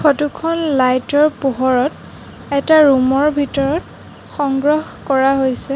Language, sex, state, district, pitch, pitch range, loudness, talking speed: Assamese, female, Assam, Sonitpur, 280 Hz, 270-300 Hz, -16 LUFS, 125 wpm